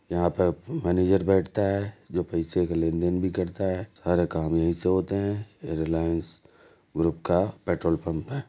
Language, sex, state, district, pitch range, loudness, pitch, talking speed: Hindi, male, Uttar Pradesh, Jalaun, 85-95 Hz, -26 LUFS, 90 Hz, 185 wpm